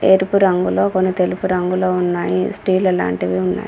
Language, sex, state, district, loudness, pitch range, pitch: Telugu, female, Telangana, Komaram Bheem, -17 LUFS, 175-190 Hz, 185 Hz